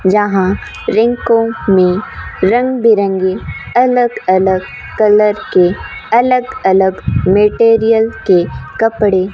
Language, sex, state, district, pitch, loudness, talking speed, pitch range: Hindi, female, Rajasthan, Bikaner, 210 Hz, -12 LUFS, 95 wpm, 190-230 Hz